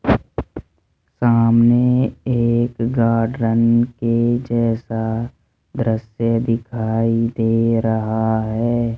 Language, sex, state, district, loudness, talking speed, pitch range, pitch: Hindi, male, Rajasthan, Jaipur, -18 LUFS, 65 wpm, 115-120 Hz, 115 Hz